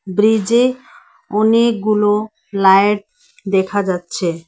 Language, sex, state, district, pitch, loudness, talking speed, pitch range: Bengali, female, West Bengal, Alipurduar, 210 Hz, -15 LUFS, 65 wpm, 195-220 Hz